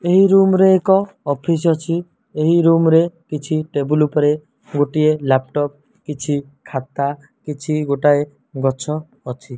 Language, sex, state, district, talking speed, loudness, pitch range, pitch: Odia, male, Odisha, Malkangiri, 125 wpm, -17 LUFS, 140-165 Hz, 150 Hz